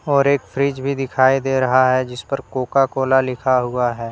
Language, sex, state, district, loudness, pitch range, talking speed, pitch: Hindi, male, Jharkhand, Deoghar, -18 LUFS, 130-135 Hz, 220 wpm, 130 Hz